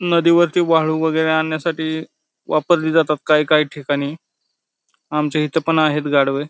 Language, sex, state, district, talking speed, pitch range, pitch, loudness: Marathi, male, Maharashtra, Pune, 150 wpm, 150-165 Hz, 155 Hz, -18 LUFS